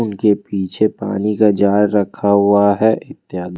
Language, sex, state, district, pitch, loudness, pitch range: Hindi, male, Jharkhand, Ranchi, 100 Hz, -15 LUFS, 100-105 Hz